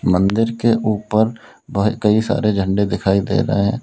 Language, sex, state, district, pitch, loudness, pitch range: Hindi, male, Uttar Pradesh, Lalitpur, 105 Hz, -18 LUFS, 100-110 Hz